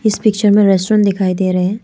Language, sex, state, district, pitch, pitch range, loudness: Hindi, female, Arunachal Pradesh, Papum Pare, 200 Hz, 190-215 Hz, -13 LUFS